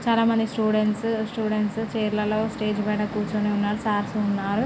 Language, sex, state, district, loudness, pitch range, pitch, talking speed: Telugu, female, Andhra Pradesh, Srikakulam, -24 LUFS, 210-220 Hz, 215 Hz, 130 wpm